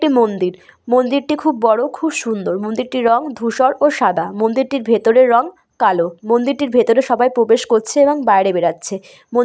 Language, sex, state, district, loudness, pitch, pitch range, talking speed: Bengali, female, West Bengal, Malda, -15 LUFS, 240 Hz, 220-265 Hz, 165 wpm